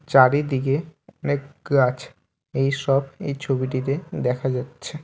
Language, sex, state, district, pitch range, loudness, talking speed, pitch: Bengali, male, West Bengal, Alipurduar, 130-145 Hz, -23 LUFS, 95 wpm, 135 Hz